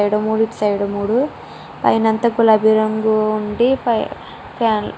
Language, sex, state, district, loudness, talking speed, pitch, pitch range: Telugu, female, Andhra Pradesh, Srikakulam, -17 LUFS, 130 wpm, 220 Hz, 210-230 Hz